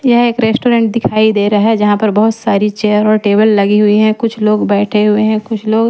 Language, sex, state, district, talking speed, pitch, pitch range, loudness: Hindi, female, Chhattisgarh, Raipur, 245 wpm, 215 Hz, 210-225 Hz, -11 LUFS